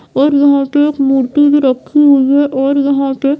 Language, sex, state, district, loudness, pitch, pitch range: Hindi, female, Bihar, Vaishali, -11 LUFS, 280 Hz, 275-290 Hz